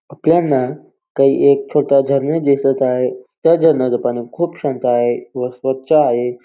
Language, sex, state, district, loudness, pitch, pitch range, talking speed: Marathi, male, Maharashtra, Dhule, -16 LUFS, 135 Hz, 125-150 Hz, 160 wpm